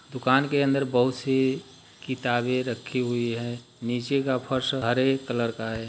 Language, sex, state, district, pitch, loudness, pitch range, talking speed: Hindi, male, Bihar, Jahanabad, 125 Hz, -26 LUFS, 120-135 Hz, 165 wpm